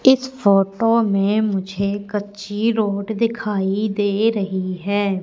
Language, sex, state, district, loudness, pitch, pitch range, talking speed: Hindi, female, Madhya Pradesh, Katni, -20 LUFS, 205 Hz, 200-220 Hz, 125 wpm